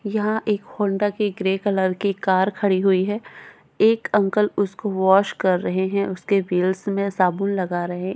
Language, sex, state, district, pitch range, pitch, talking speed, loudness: Hindi, female, Goa, North and South Goa, 190-205 Hz, 195 Hz, 190 wpm, -21 LUFS